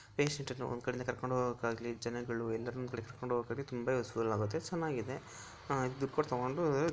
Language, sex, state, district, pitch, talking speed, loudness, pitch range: Kannada, male, Karnataka, Dharwad, 125 Hz, 130 wpm, -37 LUFS, 115-135 Hz